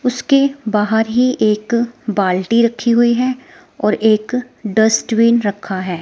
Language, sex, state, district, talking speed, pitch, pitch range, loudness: Hindi, female, Himachal Pradesh, Shimla, 130 wpm, 230 Hz, 215-250 Hz, -15 LUFS